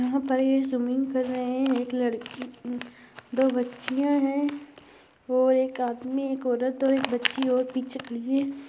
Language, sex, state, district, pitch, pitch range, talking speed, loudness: Hindi, female, Bihar, Saharsa, 260 Hz, 250-270 Hz, 150 wpm, -26 LUFS